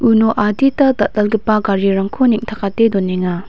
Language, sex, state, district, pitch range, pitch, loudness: Garo, female, Meghalaya, West Garo Hills, 195-230 Hz, 215 Hz, -15 LUFS